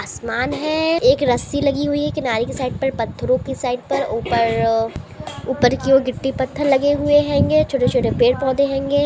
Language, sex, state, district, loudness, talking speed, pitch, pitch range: Hindi, female, Uttar Pradesh, Gorakhpur, -18 LUFS, 180 wpm, 275 Hz, 255-290 Hz